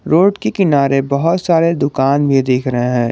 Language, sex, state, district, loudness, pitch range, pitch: Hindi, male, Jharkhand, Garhwa, -14 LUFS, 130-165 Hz, 140 Hz